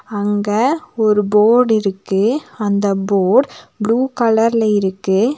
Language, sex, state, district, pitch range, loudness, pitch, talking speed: Tamil, female, Tamil Nadu, Nilgiris, 205-235 Hz, -16 LUFS, 215 Hz, 100 wpm